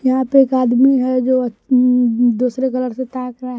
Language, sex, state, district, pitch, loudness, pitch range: Hindi, male, Bihar, West Champaran, 255 Hz, -16 LUFS, 250-260 Hz